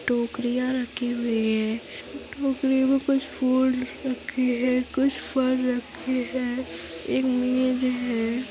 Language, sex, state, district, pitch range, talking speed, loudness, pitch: Hindi, female, Uttar Pradesh, Budaun, 245-260 Hz, 120 wpm, -25 LUFS, 255 Hz